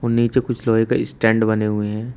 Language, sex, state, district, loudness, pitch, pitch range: Hindi, male, Uttar Pradesh, Shamli, -19 LUFS, 115 Hz, 110-120 Hz